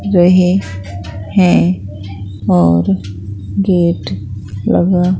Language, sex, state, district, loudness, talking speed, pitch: Hindi, female, Bihar, Katihar, -13 LUFS, 60 wpm, 100 Hz